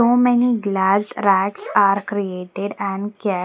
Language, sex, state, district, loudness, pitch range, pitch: English, female, Haryana, Jhajjar, -19 LUFS, 195-215 Hz, 200 Hz